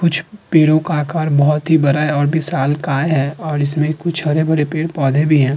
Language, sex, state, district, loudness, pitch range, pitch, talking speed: Hindi, female, Uttar Pradesh, Hamirpur, -16 LUFS, 145-160 Hz, 155 Hz, 205 wpm